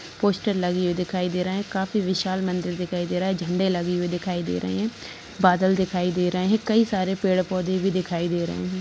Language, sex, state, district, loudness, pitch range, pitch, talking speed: Hindi, female, Maharashtra, Aurangabad, -24 LUFS, 180-190 Hz, 185 Hz, 240 wpm